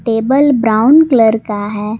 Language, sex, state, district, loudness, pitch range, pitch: Hindi, female, Jharkhand, Palamu, -11 LUFS, 215-265 Hz, 225 Hz